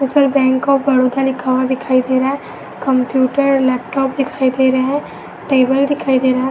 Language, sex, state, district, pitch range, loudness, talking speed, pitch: Hindi, female, Uttar Pradesh, Etah, 260-275 Hz, -15 LUFS, 205 wpm, 265 Hz